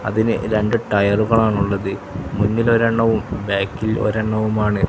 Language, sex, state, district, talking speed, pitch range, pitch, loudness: Malayalam, male, Kerala, Kasaragod, 110 wpm, 100-110 Hz, 110 Hz, -19 LUFS